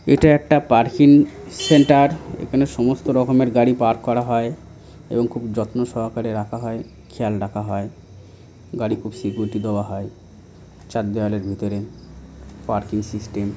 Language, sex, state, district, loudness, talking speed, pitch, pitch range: Bengali, male, West Bengal, North 24 Parganas, -20 LUFS, 135 wpm, 110 Hz, 100-120 Hz